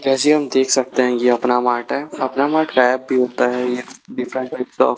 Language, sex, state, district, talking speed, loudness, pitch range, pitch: Hindi, male, Chhattisgarh, Raipur, 230 wpm, -18 LUFS, 125-135 Hz, 130 Hz